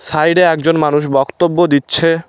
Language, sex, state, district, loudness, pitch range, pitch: Bengali, male, West Bengal, Cooch Behar, -13 LUFS, 145-165 Hz, 160 Hz